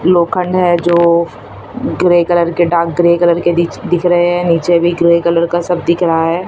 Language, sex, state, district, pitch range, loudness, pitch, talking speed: Hindi, male, Maharashtra, Mumbai Suburban, 170-175 Hz, -12 LUFS, 175 Hz, 215 wpm